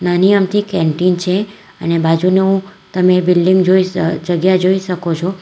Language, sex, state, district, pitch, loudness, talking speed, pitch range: Gujarati, female, Gujarat, Valsad, 185 Hz, -14 LUFS, 155 wpm, 175-190 Hz